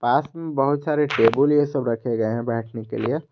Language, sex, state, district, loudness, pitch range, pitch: Hindi, male, Jharkhand, Garhwa, -22 LUFS, 115-145 Hz, 135 Hz